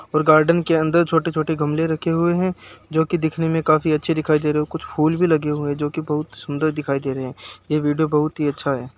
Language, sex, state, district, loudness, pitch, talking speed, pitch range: Hindi, male, Bihar, Saran, -20 LUFS, 155 Hz, 265 wpm, 150-160 Hz